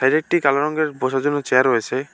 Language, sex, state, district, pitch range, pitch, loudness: Bengali, male, West Bengal, Alipurduar, 135-155 Hz, 145 Hz, -19 LUFS